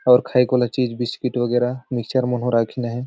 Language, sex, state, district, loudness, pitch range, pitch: Sadri, male, Chhattisgarh, Jashpur, -20 LUFS, 120-125 Hz, 125 Hz